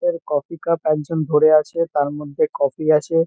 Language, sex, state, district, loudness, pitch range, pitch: Bengali, male, West Bengal, Kolkata, -19 LUFS, 150-165 Hz, 155 Hz